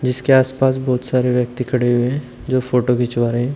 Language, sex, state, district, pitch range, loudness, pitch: Hindi, male, Uttar Pradesh, Shamli, 125-130 Hz, -18 LUFS, 125 Hz